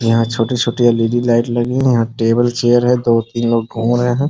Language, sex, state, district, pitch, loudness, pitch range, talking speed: Hindi, male, Bihar, Muzaffarpur, 120 Hz, -15 LUFS, 115-120 Hz, 210 wpm